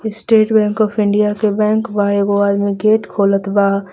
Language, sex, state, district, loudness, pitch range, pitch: Bhojpuri, female, Jharkhand, Palamu, -15 LUFS, 200-215 Hz, 210 Hz